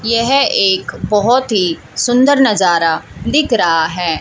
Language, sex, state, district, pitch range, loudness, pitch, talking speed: Hindi, male, Haryana, Jhajjar, 170-250 Hz, -13 LUFS, 210 Hz, 130 wpm